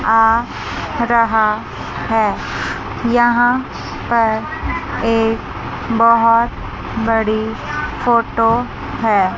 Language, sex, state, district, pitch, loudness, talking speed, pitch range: Hindi, female, Chandigarh, Chandigarh, 225 Hz, -17 LUFS, 65 wpm, 220-235 Hz